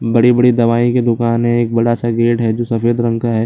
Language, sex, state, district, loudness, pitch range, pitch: Hindi, male, Bihar, Lakhisarai, -14 LUFS, 115-120 Hz, 120 Hz